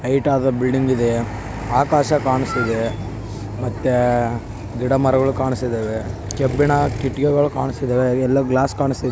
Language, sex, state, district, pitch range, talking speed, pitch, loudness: Kannada, male, Karnataka, Bellary, 115-135 Hz, 100 wpm, 125 Hz, -19 LUFS